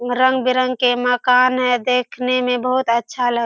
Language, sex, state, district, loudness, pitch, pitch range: Hindi, female, Bihar, Purnia, -17 LUFS, 250 Hz, 245-255 Hz